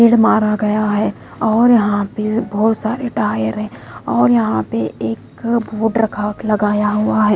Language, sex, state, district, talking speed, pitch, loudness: Hindi, female, Odisha, Malkangiri, 165 wpm, 210 Hz, -16 LUFS